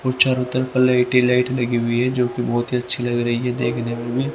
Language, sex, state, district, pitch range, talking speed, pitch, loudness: Hindi, male, Haryana, Rohtak, 120-125 Hz, 275 wpm, 125 Hz, -19 LUFS